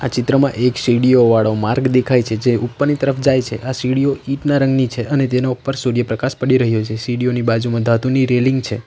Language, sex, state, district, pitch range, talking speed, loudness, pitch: Gujarati, male, Gujarat, Valsad, 120-130 Hz, 195 wpm, -16 LUFS, 125 Hz